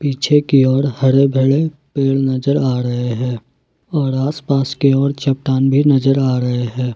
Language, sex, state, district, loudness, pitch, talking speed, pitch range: Hindi, male, Jharkhand, Ranchi, -16 LUFS, 135 Hz, 180 wpm, 130-140 Hz